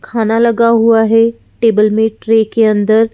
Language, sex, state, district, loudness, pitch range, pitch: Hindi, female, Madhya Pradesh, Bhopal, -11 LUFS, 220-230 Hz, 225 Hz